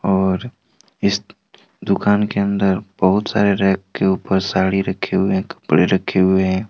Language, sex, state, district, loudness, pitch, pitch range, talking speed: Hindi, male, Jharkhand, Deoghar, -18 LUFS, 95 Hz, 95-100 Hz, 150 wpm